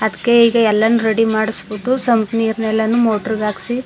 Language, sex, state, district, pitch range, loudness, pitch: Kannada, female, Karnataka, Mysore, 220-235 Hz, -16 LUFS, 220 Hz